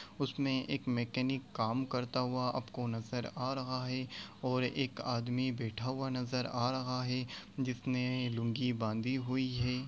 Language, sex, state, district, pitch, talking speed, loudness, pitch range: Hindi, male, Chhattisgarh, Raigarh, 125 Hz, 160 wpm, -36 LUFS, 125-130 Hz